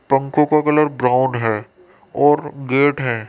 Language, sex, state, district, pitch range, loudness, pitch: Hindi, male, Rajasthan, Jaipur, 125-150 Hz, -17 LUFS, 140 Hz